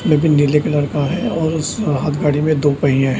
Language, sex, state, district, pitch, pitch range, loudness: Hindi, male, Bihar, Samastipur, 150 Hz, 145-160 Hz, -16 LUFS